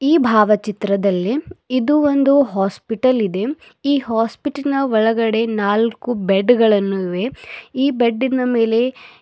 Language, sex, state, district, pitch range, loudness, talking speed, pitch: Kannada, female, Karnataka, Bidar, 210-270 Hz, -17 LUFS, 110 wpm, 230 Hz